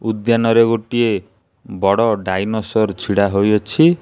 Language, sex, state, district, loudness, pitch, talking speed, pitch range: Odia, male, Odisha, Khordha, -16 LUFS, 110 Hz, 105 wpm, 100-115 Hz